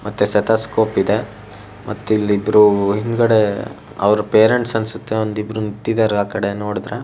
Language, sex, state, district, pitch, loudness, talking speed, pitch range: Kannada, male, Karnataka, Shimoga, 105 Hz, -17 LUFS, 130 wpm, 105-110 Hz